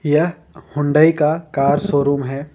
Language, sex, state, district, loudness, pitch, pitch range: Hindi, male, Jharkhand, Ranchi, -17 LUFS, 150 Hz, 140-155 Hz